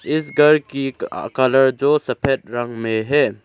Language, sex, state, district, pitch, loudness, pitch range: Hindi, male, Arunachal Pradesh, Lower Dibang Valley, 135 Hz, -18 LUFS, 120-150 Hz